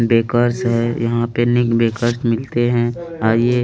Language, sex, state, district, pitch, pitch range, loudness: Hindi, male, Chandigarh, Chandigarh, 120 Hz, 115-120 Hz, -17 LUFS